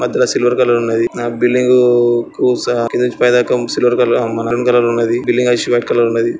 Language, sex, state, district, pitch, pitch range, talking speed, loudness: Telugu, male, Andhra Pradesh, Srikakulam, 120 Hz, 120-125 Hz, 225 wpm, -14 LUFS